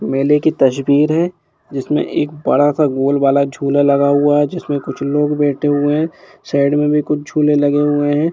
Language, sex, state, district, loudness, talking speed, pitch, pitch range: Hindi, male, Bihar, Gopalganj, -15 LUFS, 200 wpm, 145 Hz, 140-150 Hz